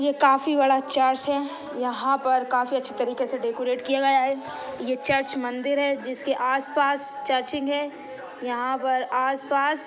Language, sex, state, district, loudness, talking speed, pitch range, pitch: Hindi, male, Maharashtra, Solapur, -24 LUFS, 160 wpm, 255-280 Hz, 270 Hz